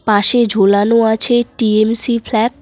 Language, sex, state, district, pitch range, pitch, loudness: Bengali, female, West Bengal, Cooch Behar, 215-240 Hz, 225 Hz, -13 LUFS